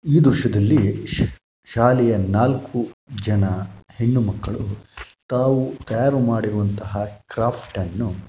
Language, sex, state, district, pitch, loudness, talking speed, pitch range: Kannada, male, Karnataka, Shimoga, 115 Hz, -21 LUFS, 85 wpm, 105-125 Hz